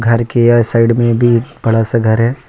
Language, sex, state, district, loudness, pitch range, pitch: Hindi, male, Jharkhand, Ranchi, -12 LUFS, 115-120 Hz, 115 Hz